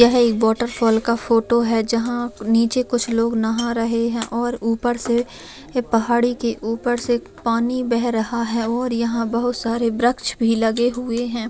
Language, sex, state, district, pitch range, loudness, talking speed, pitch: Hindi, female, Bihar, Begusarai, 230-240 Hz, -20 LUFS, 175 wpm, 235 Hz